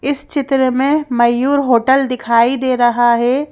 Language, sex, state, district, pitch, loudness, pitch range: Hindi, female, Madhya Pradesh, Bhopal, 255 Hz, -14 LUFS, 240-275 Hz